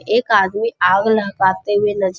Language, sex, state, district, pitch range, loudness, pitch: Hindi, male, Bihar, Jamui, 190-220 Hz, -16 LUFS, 205 Hz